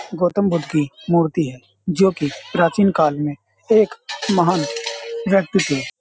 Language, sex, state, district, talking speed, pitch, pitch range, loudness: Hindi, male, Uttar Pradesh, Jyotiba Phule Nagar, 130 wpm, 170 Hz, 145-190 Hz, -19 LUFS